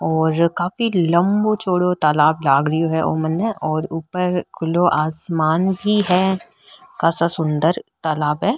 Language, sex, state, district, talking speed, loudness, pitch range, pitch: Marwari, female, Rajasthan, Nagaur, 140 wpm, -19 LUFS, 160-185 Hz, 170 Hz